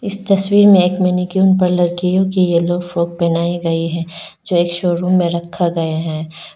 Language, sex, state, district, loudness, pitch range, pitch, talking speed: Hindi, female, Arunachal Pradesh, Lower Dibang Valley, -15 LUFS, 170-185 Hz, 175 Hz, 185 wpm